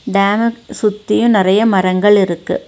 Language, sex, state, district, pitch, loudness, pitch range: Tamil, female, Tamil Nadu, Nilgiris, 205 Hz, -13 LUFS, 195-225 Hz